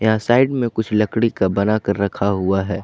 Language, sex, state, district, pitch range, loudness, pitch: Hindi, male, Jharkhand, Palamu, 100-110 Hz, -18 LUFS, 105 Hz